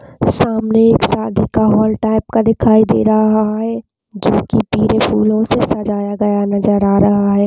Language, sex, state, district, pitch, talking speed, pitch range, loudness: Hindi, female, Chhattisgarh, Balrampur, 215 Hz, 175 wpm, 205-220 Hz, -14 LUFS